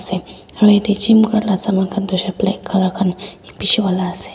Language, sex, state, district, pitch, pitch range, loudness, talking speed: Nagamese, female, Nagaland, Dimapur, 200 Hz, 185-210 Hz, -16 LUFS, 205 wpm